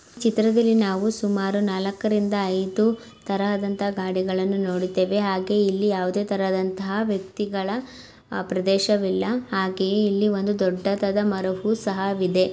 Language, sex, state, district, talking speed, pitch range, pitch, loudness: Kannada, female, Karnataka, Mysore, 90 wpm, 190-210 Hz, 200 Hz, -23 LUFS